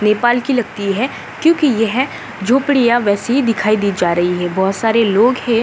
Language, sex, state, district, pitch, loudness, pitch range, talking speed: Hindi, female, Uttarakhand, Uttarkashi, 230 Hz, -15 LUFS, 200-255 Hz, 180 wpm